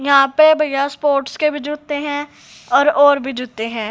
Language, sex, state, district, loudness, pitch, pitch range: Hindi, female, Haryana, Rohtak, -16 LUFS, 285 Hz, 275-295 Hz